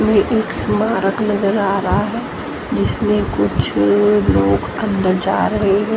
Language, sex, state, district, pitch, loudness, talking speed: Hindi, female, Haryana, Jhajjar, 195 Hz, -17 LUFS, 140 wpm